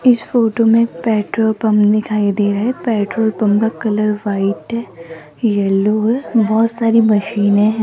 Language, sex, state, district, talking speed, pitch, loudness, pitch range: Hindi, female, Rajasthan, Jaipur, 160 wpm, 215 Hz, -15 LUFS, 205-230 Hz